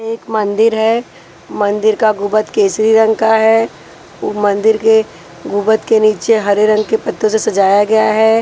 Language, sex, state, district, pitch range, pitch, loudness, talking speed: Hindi, female, Punjab, Pathankot, 210-220 Hz, 220 Hz, -13 LUFS, 165 wpm